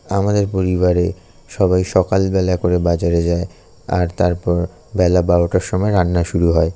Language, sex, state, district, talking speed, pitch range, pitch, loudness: Bengali, male, West Bengal, North 24 Parganas, 135 wpm, 85-95 Hz, 90 Hz, -17 LUFS